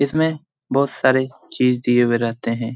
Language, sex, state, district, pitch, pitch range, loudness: Hindi, male, Bihar, Jamui, 130 Hz, 120-140 Hz, -19 LUFS